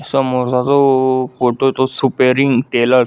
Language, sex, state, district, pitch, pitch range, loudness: Marathi, male, Maharashtra, Solapur, 130 Hz, 125-135 Hz, -14 LUFS